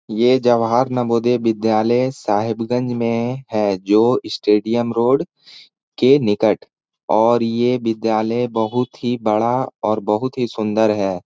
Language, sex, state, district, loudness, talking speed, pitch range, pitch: Hindi, male, Jharkhand, Sahebganj, -18 LUFS, 125 wpm, 110-120 Hz, 115 Hz